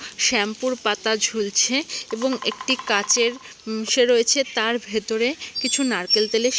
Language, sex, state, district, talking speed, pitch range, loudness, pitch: Bengali, female, West Bengal, Malda, 145 wpm, 215-255 Hz, -21 LUFS, 230 Hz